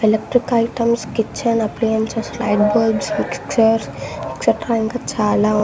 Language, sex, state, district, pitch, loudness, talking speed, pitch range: Telugu, female, Telangana, Mahabubabad, 225 Hz, -18 LUFS, 115 wpm, 215-235 Hz